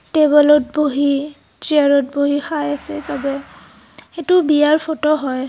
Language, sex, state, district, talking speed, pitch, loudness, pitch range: Assamese, female, Assam, Kamrup Metropolitan, 120 wpm, 295 Hz, -16 LUFS, 280-305 Hz